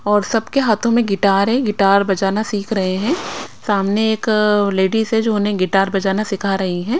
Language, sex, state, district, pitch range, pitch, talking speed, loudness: Hindi, female, Bihar, Patna, 195-220 Hz, 205 Hz, 190 wpm, -17 LUFS